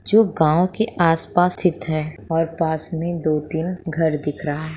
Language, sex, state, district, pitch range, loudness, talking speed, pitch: Hindi, female, Bihar, Begusarai, 155-175 Hz, -20 LUFS, 190 wpm, 165 Hz